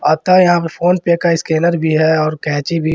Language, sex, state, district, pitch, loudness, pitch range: Hindi, male, Jharkhand, Ranchi, 165 Hz, -14 LUFS, 155-170 Hz